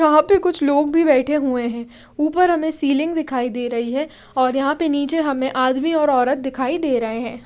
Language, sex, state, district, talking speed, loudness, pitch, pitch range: Hindi, female, Haryana, Rohtak, 215 wpm, -19 LUFS, 280 Hz, 255-310 Hz